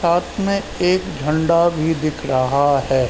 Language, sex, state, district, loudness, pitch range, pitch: Hindi, male, Uttar Pradesh, Ghazipur, -18 LUFS, 140-175 Hz, 160 Hz